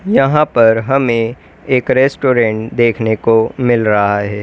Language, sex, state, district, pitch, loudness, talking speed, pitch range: Hindi, female, Uttar Pradesh, Lalitpur, 115 Hz, -13 LUFS, 135 wpm, 110-130 Hz